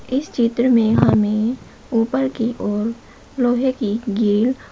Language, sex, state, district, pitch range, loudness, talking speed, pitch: Hindi, male, Uttar Pradesh, Shamli, 220-255 Hz, -19 LUFS, 140 wpm, 230 Hz